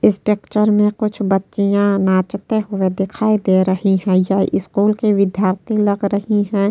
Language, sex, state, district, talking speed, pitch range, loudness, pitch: Hindi, female, Uttar Pradesh, Etah, 160 wpm, 195-210 Hz, -17 LUFS, 200 Hz